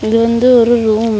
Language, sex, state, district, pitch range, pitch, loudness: Tamil, female, Tamil Nadu, Kanyakumari, 220-240 Hz, 230 Hz, -11 LUFS